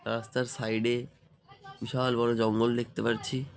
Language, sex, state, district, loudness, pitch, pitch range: Bengali, male, West Bengal, Jalpaiguri, -30 LUFS, 120 Hz, 115-130 Hz